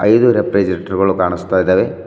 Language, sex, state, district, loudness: Kannada, male, Karnataka, Bidar, -15 LUFS